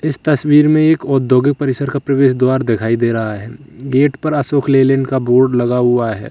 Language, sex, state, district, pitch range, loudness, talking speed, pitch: Hindi, male, Uttar Pradesh, Lalitpur, 125-140 Hz, -14 LUFS, 210 wpm, 135 Hz